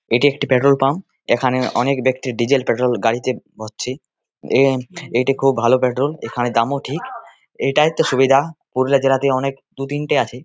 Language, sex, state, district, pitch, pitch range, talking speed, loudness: Bengali, male, West Bengal, Purulia, 135 Hz, 125-140 Hz, 160 wpm, -18 LUFS